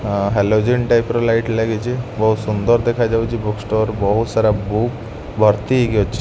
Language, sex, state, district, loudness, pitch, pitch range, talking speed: Odia, male, Odisha, Khordha, -17 LUFS, 110 Hz, 105-115 Hz, 175 wpm